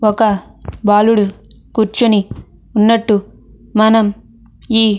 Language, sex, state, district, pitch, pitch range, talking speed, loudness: Telugu, female, Andhra Pradesh, Anantapur, 215 Hz, 205-225 Hz, 85 wpm, -14 LUFS